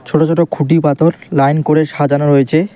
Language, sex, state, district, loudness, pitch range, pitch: Bengali, male, West Bengal, Alipurduar, -13 LUFS, 145-165 Hz, 155 Hz